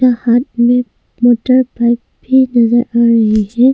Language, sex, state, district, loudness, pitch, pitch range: Hindi, female, Arunachal Pradesh, Longding, -12 LUFS, 240 Hz, 235-255 Hz